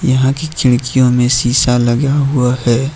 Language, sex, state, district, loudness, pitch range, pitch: Hindi, male, Jharkhand, Ranchi, -13 LUFS, 125-140 Hz, 130 Hz